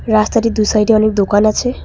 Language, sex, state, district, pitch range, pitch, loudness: Bengali, female, West Bengal, Cooch Behar, 215-225 Hz, 215 Hz, -13 LUFS